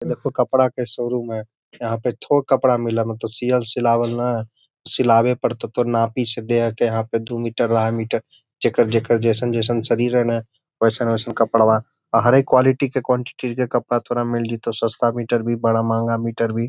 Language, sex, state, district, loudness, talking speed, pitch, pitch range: Magahi, male, Bihar, Gaya, -19 LUFS, 185 wpm, 120 Hz, 115-125 Hz